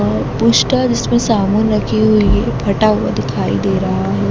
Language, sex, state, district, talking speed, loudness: Hindi, female, Madhya Pradesh, Dhar, 180 wpm, -14 LUFS